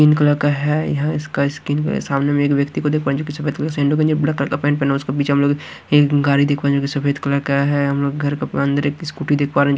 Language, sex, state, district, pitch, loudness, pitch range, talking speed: Hindi, male, Haryana, Rohtak, 145 Hz, -18 LUFS, 140-150 Hz, 250 wpm